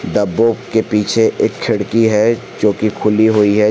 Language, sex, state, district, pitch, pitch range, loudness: Hindi, male, Jharkhand, Garhwa, 110 Hz, 105-115 Hz, -14 LUFS